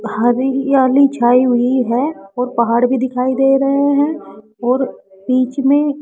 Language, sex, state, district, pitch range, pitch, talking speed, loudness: Hindi, female, Rajasthan, Jaipur, 245-275 Hz, 255 Hz, 150 wpm, -15 LUFS